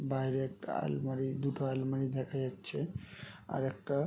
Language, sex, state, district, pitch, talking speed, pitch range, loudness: Bengali, male, West Bengal, Jhargram, 135 Hz, 150 wpm, 130-135 Hz, -36 LUFS